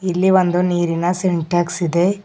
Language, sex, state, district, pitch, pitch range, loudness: Kannada, female, Karnataka, Bidar, 175 Hz, 175-185 Hz, -17 LUFS